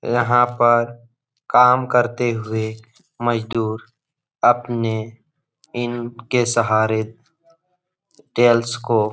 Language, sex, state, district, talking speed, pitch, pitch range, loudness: Hindi, male, Bihar, Jahanabad, 80 wpm, 120 Hz, 115-125 Hz, -19 LUFS